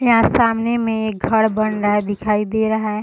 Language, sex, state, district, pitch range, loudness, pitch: Hindi, female, Bihar, Sitamarhi, 210-225 Hz, -18 LUFS, 220 Hz